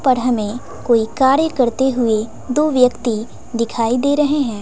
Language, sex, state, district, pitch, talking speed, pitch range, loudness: Hindi, female, Bihar, West Champaran, 245 Hz, 155 wpm, 230-265 Hz, -17 LUFS